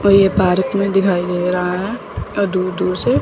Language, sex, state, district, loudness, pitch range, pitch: Hindi, female, Chandigarh, Chandigarh, -17 LUFS, 180-195 Hz, 185 Hz